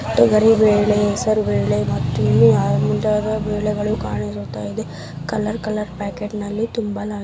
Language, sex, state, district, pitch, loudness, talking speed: Kannada, male, Karnataka, Bijapur, 205 Hz, -19 LUFS, 115 wpm